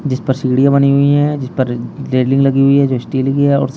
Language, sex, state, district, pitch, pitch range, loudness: Hindi, male, Uttar Pradesh, Shamli, 135 Hz, 130-140 Hz, -14 LUFS